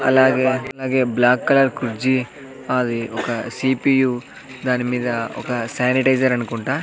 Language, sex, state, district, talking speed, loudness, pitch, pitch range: Telugu, male, Andhra Pradesh, Sri Satya Sai, 105 wpm, -19 LUFS, 130 Hz, 120-130 Hz